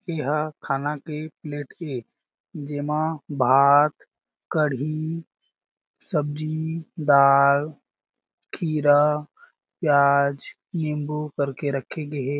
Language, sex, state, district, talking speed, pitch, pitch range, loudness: Chhattisgarhi, male, Chhattisgarh, Jashpur, 85 wpm, 150 Hz, 140-155 Hz, -23 LUFS